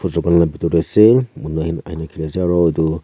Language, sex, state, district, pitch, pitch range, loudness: Nagamese, male, Nagaland, Kohima, 85 Hz, 80-90 Hz, -16 LUFS